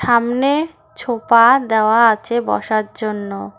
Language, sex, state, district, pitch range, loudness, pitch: Bengali, female, West Bengal, Cooch Behar, 215-240 Hz, -16 LUFS, 230 Hz